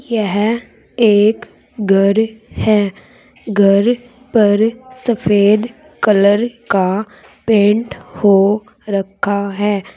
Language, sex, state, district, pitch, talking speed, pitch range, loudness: Hindi, female, Uttar Pradesh, Saharanpur, 210 Hz, 80 wpm, 200-225 Hz, -15 LUFS